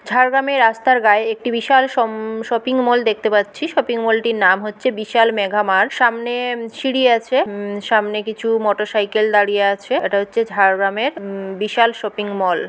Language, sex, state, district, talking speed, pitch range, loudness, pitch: Bengali, female, West Bengal, Jhargram, 160 wpm, 205-240 Hz, -17 LUFS, 225 Hz